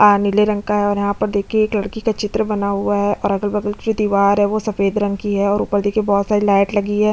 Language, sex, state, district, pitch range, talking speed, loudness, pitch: Hindi, female, Chhattisgarh, Bastar, 200-210 Hz, 285 wpm, -18 LUFS, 205 Hz